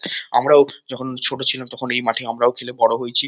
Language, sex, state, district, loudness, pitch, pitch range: Bengali, male, West Bengal, North 24 Parganas, -17 LUFS, 125 Hz, 120-130 Hz